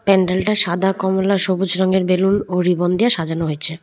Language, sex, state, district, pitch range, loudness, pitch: Bengali, female, West Bengal, Cooch Behar, 180-195 Hz, -17 LUFS, 190 Hz